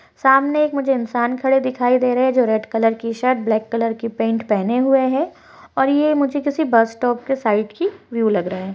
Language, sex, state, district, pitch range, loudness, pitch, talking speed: Hindi, female, Uttar Pradesh, Budaun, 225-270 Hz, -18 LUFS, 250 Hz, 235 wpm